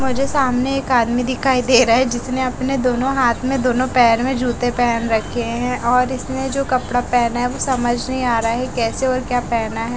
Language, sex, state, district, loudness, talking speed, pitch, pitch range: Hindi, female, Bihar, West Champaran, -18 LUFS, 220 wpm, 250 Hz, 240-260 Hz